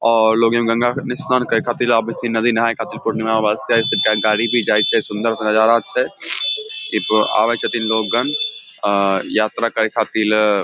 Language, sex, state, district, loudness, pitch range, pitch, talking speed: Maithili, male, Bihar, Samastipur, -17 LUFS, 110-120 Hz, 115 Hz, 205 wpm